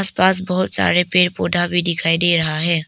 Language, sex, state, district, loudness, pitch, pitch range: Hindi, female, Arunachal Pradesh, Papum Pare, -16 LUFS, 175 Hz, 170-180 Hz